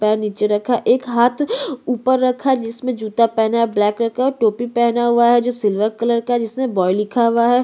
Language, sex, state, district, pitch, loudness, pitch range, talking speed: Hindi, female, Chhattisgarh, Korba, 235 Hz, -17 LUFS, 220-250 Hz, 250 wpm